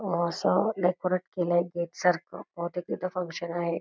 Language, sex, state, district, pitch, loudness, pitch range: Marathi, female, Karnataka, Belgaum, 175 Hz, -29 LUFS, 170-185 Hz